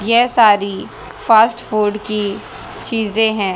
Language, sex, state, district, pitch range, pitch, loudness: Hindi, female, Haryana, Rohtak, 205-230 Hz, 215 Hz, -15 LUFS